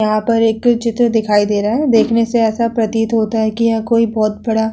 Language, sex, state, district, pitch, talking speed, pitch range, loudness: Hindi, female, Uttar Pradesh, Hamirpur, 225 Hz, 255 wpm, 220-230 Hz, -15 LUFS